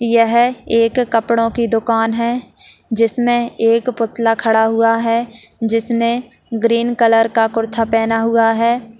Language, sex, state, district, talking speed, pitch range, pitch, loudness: Hindi, female, Uttarakhand, Tehri Garhwal, 140 wpm, 225-235 Hz, 230 Hz, -15 LUFS